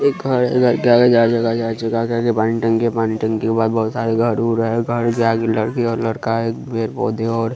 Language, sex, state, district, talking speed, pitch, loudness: Hindi, male, Bihar, West Champaran, 230 wpm, 115 Hz, -18 LUFS